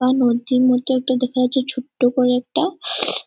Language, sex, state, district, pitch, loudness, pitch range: Bengali, female, West Bengal, Purulia, 255 Hz, -19 LUFS, 250-260 Hz